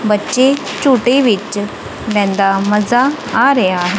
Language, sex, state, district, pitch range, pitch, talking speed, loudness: Punjabi, female, Punjab, Kapurthala, 205-260 Hz, 210 Hz, 105 wpm, -13 LUFS